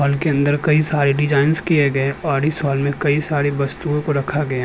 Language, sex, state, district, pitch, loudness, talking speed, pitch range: Hindi, male, Uttar Pradesh, Jyotiba Phule Nagar, 145 Hz, -17 LUFS, 235 wpm, 140-150 Hz